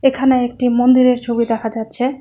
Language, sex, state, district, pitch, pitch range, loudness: Bengali, female, West Bengal, Cooch Behar, 245 Hz, 235-255 Hz, -15 LUFS